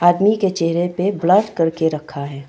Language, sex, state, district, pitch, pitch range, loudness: Hindi, female, Arunachal Pradesh, Longding, 175 Hz, 160-195 Hz, -18 LUFS